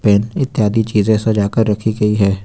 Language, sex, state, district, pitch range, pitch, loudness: Hindi, male, Uttar Pradesh, Lucknow, 105-110 Hz, 105 Hz, -15 LUFS